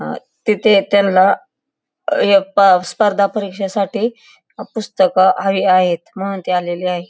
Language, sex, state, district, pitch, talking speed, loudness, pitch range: Marathi, female, Maharashtra, Pune, 195 Hz, 125 wpm, -15 LUFS, 185-215 Hz